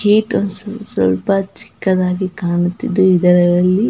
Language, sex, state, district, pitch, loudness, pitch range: Kannada, female, Karnataka, Belgaum, 185 Hz, -15 LUFS, 175-205 Hz